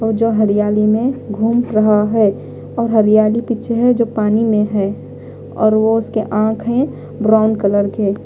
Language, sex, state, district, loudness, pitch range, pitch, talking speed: Hindi, female, Bihar, Katihar, -15 LUFS, 210-225 Hz, 215 Hz, 165 wpm